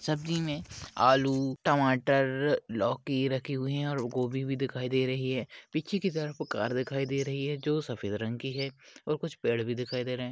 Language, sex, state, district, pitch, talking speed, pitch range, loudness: Hindi, male, Maharashtra, Dhule, 135 Hz, 210 wpm, 125-145 Hz, -30 LUFS